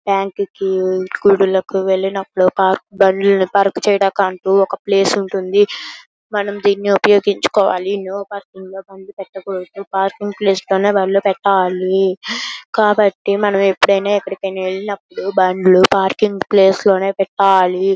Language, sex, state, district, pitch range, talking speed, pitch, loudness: Telugu, female, Andhra Pradesh, Guntur, 190-200 Hz, 115 wpm, 195 Hz, -15 LUFS